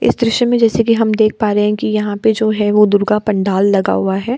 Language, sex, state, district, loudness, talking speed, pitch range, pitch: Hindi, female, Bihar, Kishanganj, -14 LUFS, 290 wpm, 205-225 Hz, 210 Hz